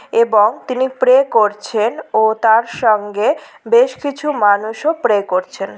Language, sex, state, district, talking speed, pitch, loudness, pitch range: Bengali, female, West Bengal, Purulia, 135 wpm, 225 Hz, -15 LUFS, 210-260 Hz